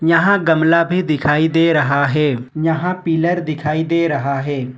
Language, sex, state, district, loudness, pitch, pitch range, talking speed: Hindi, male, Jharkhand, Ranchi, -16 LUFS, 160 Hz, 145-165 Hz, 165 wpm